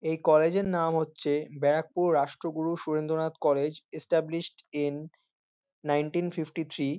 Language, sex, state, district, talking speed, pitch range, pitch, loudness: Bengali, male, West Bengal, North 24 Parganas, 135 wpm, 150-165 Hz, 160 Hz, -28 LUFS